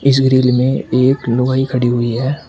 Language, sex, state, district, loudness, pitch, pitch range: Hindi, male, Uttar Pradesh, Shamli, -14 LUFS, 130 Hz, 125-135 Hz